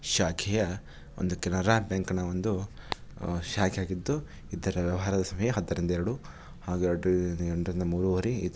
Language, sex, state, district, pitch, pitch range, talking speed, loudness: Kannada, male, Karnataka, Shimoga, 90 Hz, 90-100 Hz, 105 wpm, -30 LUFS